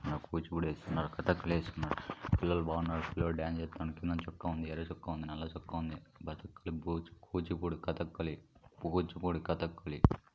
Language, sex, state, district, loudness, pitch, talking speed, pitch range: Telugu, male, Andhra Pradesh, Krishna, -38 LUFS, 85 Hz, 140 wpm, 80-85 Hz